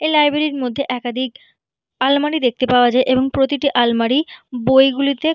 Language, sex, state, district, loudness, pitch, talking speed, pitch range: Bengali, female, West Bengal, Purulia, -17 LUFS, 270 Hz, 145 wpm, 250-290 Hz